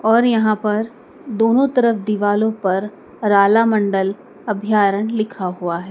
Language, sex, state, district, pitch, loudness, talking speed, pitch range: Hindi, female, Madhya Pradesh, Dhar, 215 Hz, -17 LUFS, 120 wpm, 200-225 Hz